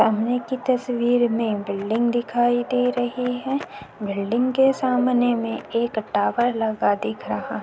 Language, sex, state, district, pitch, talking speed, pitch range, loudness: Hindi, female, Bihar, Vaishali, 240 Hz, 140 wpm, 225-250 Hz, -22 LUFS